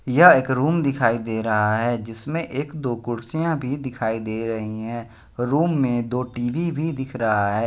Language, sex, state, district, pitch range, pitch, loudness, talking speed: Hindi, male, Bihar, West Champaran, 115-140 Hz, 120 Hz, -22 LUFS, 185 wpm